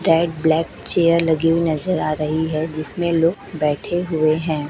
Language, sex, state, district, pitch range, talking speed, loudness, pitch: Hindi, female, Chhattisgarh, Raipur, 155-170 Hz, 180 wpm, -19 LUFS, 160 Hz